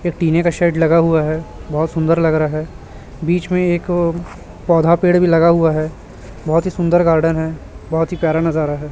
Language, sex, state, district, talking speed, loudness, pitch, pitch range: Hindi, male, Chhattisgarh, Raipur, 215 wpm, -16 LUFS, 165 Hz, 155-170 Hz